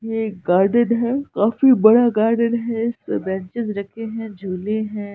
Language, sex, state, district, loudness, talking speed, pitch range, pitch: Hindi, female, Bihar, Saharsa, -19 LUFS, 150 wpm, 205-235 Hz, 225 Hz